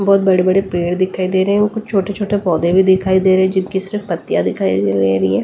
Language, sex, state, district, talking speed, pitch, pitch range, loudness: Hindi, female, Delhi, New Delhi, 255 wpm, 190 Hz, 175-195 Hz, -15 LUFS